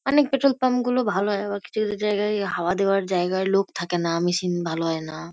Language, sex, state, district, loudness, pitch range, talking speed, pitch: Bengali, female, West Bengal, Kolkata, -23 LUFS, 175-210 Hz, 225 wpm, 195 Hz